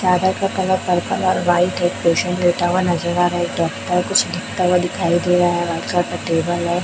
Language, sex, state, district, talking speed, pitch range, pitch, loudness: Hindi, male, Chhattisgarh, Raipur, 255 wpm, 175-185 Hz, 175 Hz, -18 LUFS